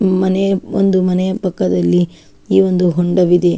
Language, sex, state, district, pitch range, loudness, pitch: Kannada, female, Karnataka, Shimoga, 175-190 Hz, -15 LUFS, 185 Hz